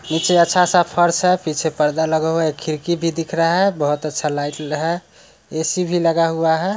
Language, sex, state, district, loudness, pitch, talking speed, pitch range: Hindi, male, Bihar, Muzaffarpur, -18 LUFS, 165 Hz, 205 wpm, 155-175 Hz